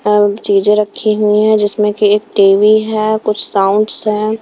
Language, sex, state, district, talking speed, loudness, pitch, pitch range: Hindi, female, Himachal Pradesh, Shimla, 175 wpm, -12 LUFS, 210 Hz, 205-215 Hz